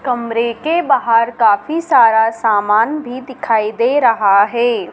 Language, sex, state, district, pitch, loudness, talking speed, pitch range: Hindi, female, Madhya Pradesh, Dhar, 235 Hz, -14 LUFS, 135 wpm, 220-260 Hz